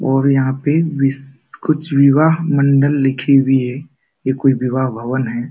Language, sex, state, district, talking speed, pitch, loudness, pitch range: Hindi, male, Uttar Pradesh, Jalaun, 165 wpm, 135 Hz, -15 LUFS, 130-140 Hz